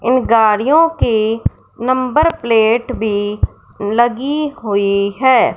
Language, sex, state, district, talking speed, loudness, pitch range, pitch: Hindi, male, Punjab, Fazilka, 95 wpm, -15 LUFS, 215-260 Hz, 235 Hz